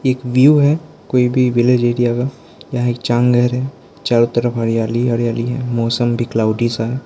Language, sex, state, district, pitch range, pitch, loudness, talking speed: Hindi, male, Arunachal Pradesh, Lower Dibang Valley, 120-125 Hz, 120 Hz, -16 LUFS, 195 wpm